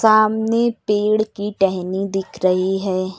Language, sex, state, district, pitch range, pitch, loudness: Hindi, female, Uttar Pradesh, Lucknow, 190-215 Hz, 200 Hz, -19 LUFS